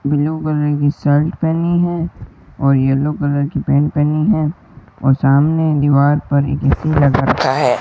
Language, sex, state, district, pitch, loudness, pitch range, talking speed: Hindi, male, Rajasthan, Bikaner, 145 Hz, -15 LUFS, 140-155 Hz, 175 wpm